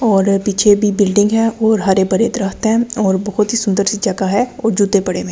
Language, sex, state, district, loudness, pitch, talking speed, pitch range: Hindi, female, Delhi, New Delhi, -15 LUFS, 205 Hz, 225 wpm, 195-220 Hz